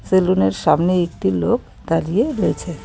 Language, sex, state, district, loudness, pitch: Bengali, female, West Bengal, Cooch Behar, -18 LUFS, 175 Hz